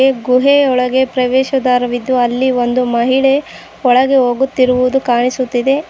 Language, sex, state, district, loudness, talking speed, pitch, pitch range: Kannada, female, Karnataka, Koppal, -13 LUFS, 100 wpm, 255 Hz, 250-265 Hz